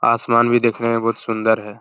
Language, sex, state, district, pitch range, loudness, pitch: Hindi, male, Uttar Pradesh, Hamirpur, 110-115 Hz, -18 LUFS, 115 Hz